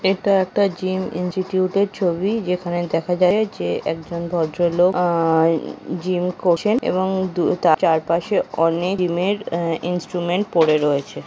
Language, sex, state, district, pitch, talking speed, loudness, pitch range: Bengali, female, West Bengal, North 24 Parganas, 180 Hz, 140 wpm, -20 LUFS, 170-185 Hz